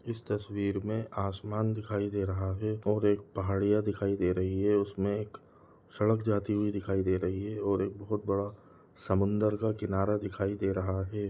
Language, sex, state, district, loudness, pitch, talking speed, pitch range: Hindi, male, Chhattisgarh, Balrampur, -31 LUFS, 100 Hz, 185 wpm, 95-105 Hz